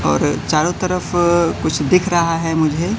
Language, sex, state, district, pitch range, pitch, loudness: Hindi, male, Madhya Pradesh, Katni, 160-180 Hz, 170 Hz, -17 LUFS